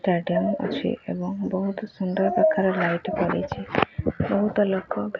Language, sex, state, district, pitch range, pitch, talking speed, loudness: Odia, female, Odisha, Khordha, 180-205 Hz, 190 Hz, 90 wpm, -25 LUFS